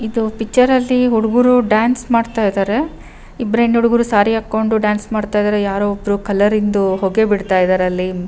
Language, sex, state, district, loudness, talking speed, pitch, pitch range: Kannada, female, Karnataka, Bellary, -15 LUFS, 140 wpm, 215 Hz, 205-235 Hz